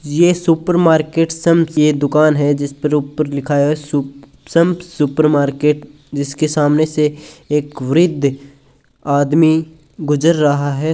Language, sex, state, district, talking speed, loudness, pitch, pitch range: Hindi, male, Rajasthan, Churu, 120 wpm, -15 LUFS, 150 Hz, 145-160 Hz